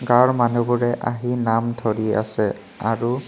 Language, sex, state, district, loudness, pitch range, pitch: Assamese, male, Assam, Kamrup Metropolitan, -21 LUFS, 110-120 Hz, 120 Hz